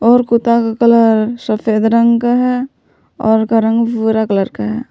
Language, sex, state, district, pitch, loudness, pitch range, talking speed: Hindi, female, Jharkhand, Palamu, 230 Hz, -13 LUFS, 220-235 Hz, 185 wpm